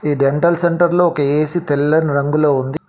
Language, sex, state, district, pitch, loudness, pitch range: Telugu, male, Telangana, Mahabubabad, 150 Hz, -15 LUFS, 145-170 Hz